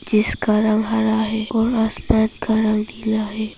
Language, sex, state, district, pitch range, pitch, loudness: Hindi, female, Arunachal Pradesh, Papum Pare, 215-220 Hz, 220 Hz, -19 LUFS